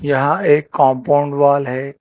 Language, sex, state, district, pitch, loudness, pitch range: Hindi, male, Telangana, Hyderabad, 140 Hz, -15 LUFS, 135-145 Hz